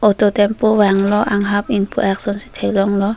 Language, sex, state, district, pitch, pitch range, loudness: Karbi, female, Assam, Karbi Anglong, 205 Hz, 200-210 Hz, -16 LUFS